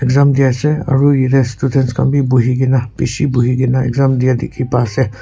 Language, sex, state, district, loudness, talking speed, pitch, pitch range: Nagamese, male, Nagaland, Kohima, -14 LUFS, 205 wpm, 130 Hz, 125-135 Hz